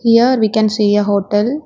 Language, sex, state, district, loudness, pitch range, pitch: English, female, Telangana, Hyderabad, -14 LUFS, 205-235 Hz, 215 Hz